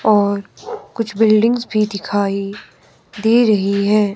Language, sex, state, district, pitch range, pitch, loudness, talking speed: Hindi, female, Himachal Pradesh, Shimla, 200-225 Hz, 210 Hz, -16 LUFS, 115 wpm